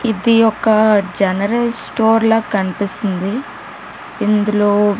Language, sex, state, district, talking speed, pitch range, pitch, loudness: Telugu, female, Telangana, Karimnagar, 95 wpm, 200-225 Hz, 210 Hz, -15 LUFS